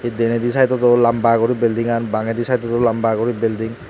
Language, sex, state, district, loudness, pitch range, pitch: Chakma, male, Tripura, Dhalai, -17 LUFS, 115-120 Hz, 115 Hz